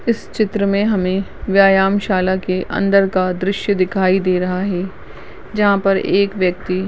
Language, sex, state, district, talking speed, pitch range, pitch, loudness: Hindi, male, Maharashtra, Sindhudurg, 155 wpm, 185-200 Hz, 195 Hz, -16 LUFS